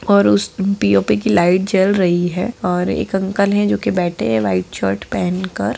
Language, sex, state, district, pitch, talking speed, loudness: Hindi, female, Bihar, Jahanabad, 180 Hz, 205 wpm, -17 LUFS